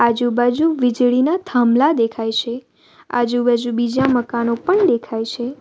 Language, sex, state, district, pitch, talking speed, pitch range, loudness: Gujarati, female, Gujarat, Valsad, 245 Hz, 120 wpm, 235-260 Hz, -17 LUFS